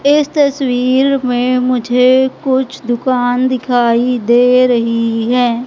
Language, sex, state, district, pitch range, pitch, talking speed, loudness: Hindi, female, Madhya Pradesh, Katni, 245-260 Hz, 250 Hz, 105 wpm, -13 LUFS